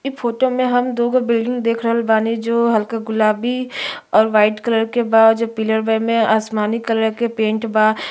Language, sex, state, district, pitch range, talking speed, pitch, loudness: Bhojpuri, female, Uttar Pradesh, Gorakhpur, 220-235 Hz, 200 wpm, 225 Hz, -17 LUFS